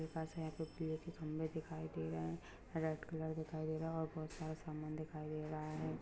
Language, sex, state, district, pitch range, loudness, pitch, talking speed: Hindi, female, Jharkhand, Jamtara, 155-160 Hz, -45 LUFS, 155 Hz, 170 wpm